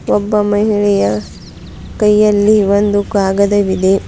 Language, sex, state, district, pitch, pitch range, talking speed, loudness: Kannada, female, Karnataka, Bidar, 205 Hz, 190-210 Hz, 75 wpm, -13 LUFS